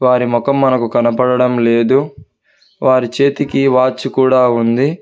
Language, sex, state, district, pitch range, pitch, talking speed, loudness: Telugu, male, Telangana, Hyderabad, 125-135 Hz, 130 Hz, 120 wpm, -13 LUFS